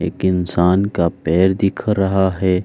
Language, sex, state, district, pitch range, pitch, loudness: Hindi, male, Bihar, Saran, 90-95 Hz, 95 Hz, -17 LUFS